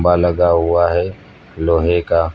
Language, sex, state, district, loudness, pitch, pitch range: Hindi, male, Uttar Pradesh, Lucknow, -16 LUFS, 85 Hz, 85-90 Hz